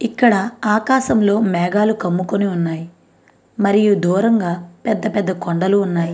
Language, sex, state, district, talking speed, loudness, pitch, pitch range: Telugu, female, Andhra Pradesh, Anantapur, 105 wpm, -17 LUFS, 200 Hz, 175-215 Hz